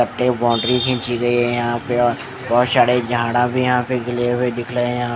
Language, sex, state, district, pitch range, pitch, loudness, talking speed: Hindi, male, Odisha, Khordha, 120-125 Hz, 120 Hz, -18 LUFS, 210 wpm